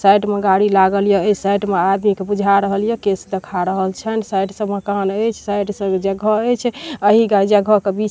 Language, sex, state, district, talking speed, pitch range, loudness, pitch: Maithili, female, Bihar, Darbhanga, 215 wpm, 195-210 Hz, -17 LUFS, 200 Hz